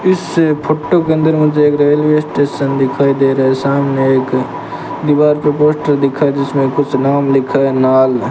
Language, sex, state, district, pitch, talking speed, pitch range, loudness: Hindi, male, Rajasthan, Bikaner, 140 Hz, 180 wpm, 135-150 Hz, -13 LUFS